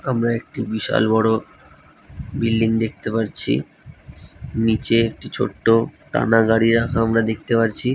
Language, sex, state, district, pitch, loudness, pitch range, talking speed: Bengali, male, West Bengal, North 24 Parganas, 115 Hz, -20 LUFS, 110-115 Hz, 120 wpm